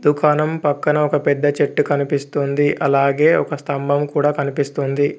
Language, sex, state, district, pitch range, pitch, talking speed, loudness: Telugu, male, Telangana, Komaram Bheem, 140-150 Hz, 145 Hz, 125 wpm, -18 LUFS